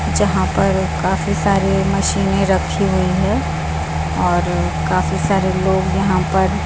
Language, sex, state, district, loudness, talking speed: Hindi, female, Chhattisgarh, Raipur, -17 LUFS, 125 wpm